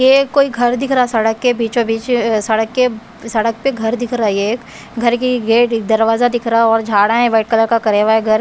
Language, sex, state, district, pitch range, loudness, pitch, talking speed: Hindi, female, Bihar, West Champaran, 225-245 Hz, -14 LUFS, 230 Hz, 235 wpm